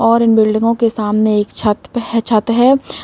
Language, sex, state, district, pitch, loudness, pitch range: Hindi, female, Uttar Pradesh, Deoria, 230 Hz, -14 LUFS, 215-235 Hz